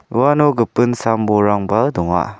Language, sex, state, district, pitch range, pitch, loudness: Garo, male, Meghalaya, South Garo Hills, 105-120 Hz, 115 Hz, -16 LUFS